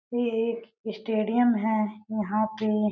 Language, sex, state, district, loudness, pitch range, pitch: Hindi, female, Chhattisgarh, Balrampur, -27 LUFS, 215-230 Hz, 220 Hz